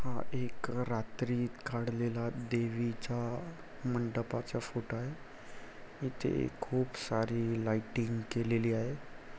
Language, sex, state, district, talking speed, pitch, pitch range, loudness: Marathi, male, Maharashtra, Chandrapur, 90 wpm, 120 Hz, 115-125 Hz, -36 LUFS